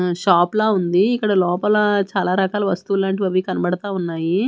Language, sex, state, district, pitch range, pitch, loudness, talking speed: Telugu, female, Andhra Pradesh, Manyam, 180-205 Hz, 190 Hz, -19 LUFS, 135 wpm